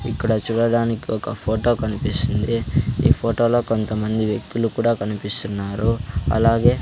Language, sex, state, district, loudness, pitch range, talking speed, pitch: Telugu, male, Andhra Pradesh, Sri Satya Sai, -21 LUFS, 105-115 Hz, 115 wpm, 115 Hz